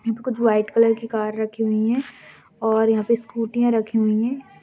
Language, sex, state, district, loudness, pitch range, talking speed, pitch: Hindi, female, Goa, North and South Goa, -21 LUFS, 220-235 Hz, 195 wpm, 225 Hz